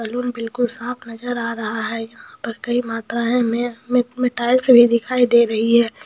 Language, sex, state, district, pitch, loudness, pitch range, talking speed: Hindi, female, Bihar, Begusarai, 235 Hz, -19 LUFS, 230-245 Hz, 210 wpm